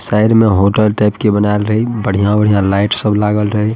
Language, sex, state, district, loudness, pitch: Maithili, male, Bihar, Madhepura, -13 LUFS, 105 Hz